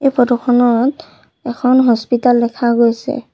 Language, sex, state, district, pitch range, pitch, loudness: Assamese, female, Assam, Sonitpur, 235-255 Hz, 245 Hz, -14 LUFS